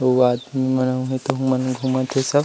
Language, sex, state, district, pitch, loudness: Chhattisgarhi, male, Chhattisgarh, Rajnandgaon, 130 Hz, -21 LUFS